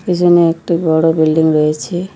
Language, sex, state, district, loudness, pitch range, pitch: Bengali, female, West Bengal, Cooch Behar, -13 LUFS, 160-175 Hz, 165 Hz